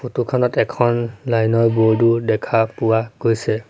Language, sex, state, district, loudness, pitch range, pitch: Assamese, male, Assam, Sonitpur, -18 LUFS, 110-120 Hz, 115 Hz